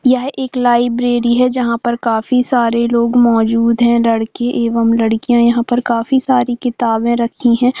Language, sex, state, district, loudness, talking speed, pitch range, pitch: Hindi, female, Jharkhand, Jamtara, -14 LUFS, 160 wpm, 235-245 Hz, 240 Hz